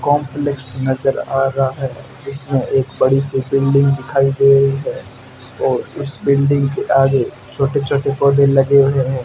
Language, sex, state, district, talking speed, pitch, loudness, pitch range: Hindi, male, Rajasthan, Bikaner, 160 wpm, 135 Hz, -16 LUFS, 135-140 Hz